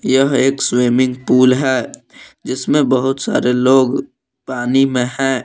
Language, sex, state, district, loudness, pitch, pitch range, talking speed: Hindi, male, Jharkhand, Palamu, -15 LUFS, 130 Hz, 125-135 Hz, 130 wpm